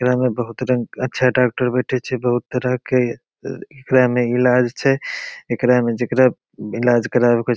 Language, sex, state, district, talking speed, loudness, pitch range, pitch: Maithili, male, Bihar, Begusarai, 175 wpm, -18 LUFS, 120-125 Hz, 125 Hz